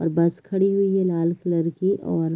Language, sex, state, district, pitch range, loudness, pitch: Hindi, female, Chhattisgarh, Raigarh, 165-195 Hz, -22 LUFS, 175 Hz